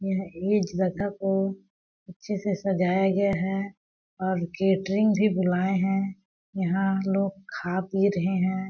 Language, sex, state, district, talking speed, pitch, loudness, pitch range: Hindi, female, Chhattisgarh, Balrampur, 130 wpm, 195 Hz, -26 LUFS, 185-195 Hz